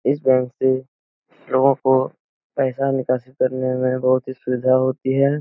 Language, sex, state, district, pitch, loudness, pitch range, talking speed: Hindi, male, Bihar, Jahanabad, 130 Hz, -20 LUFS, 130-135 Hz, 165 wpm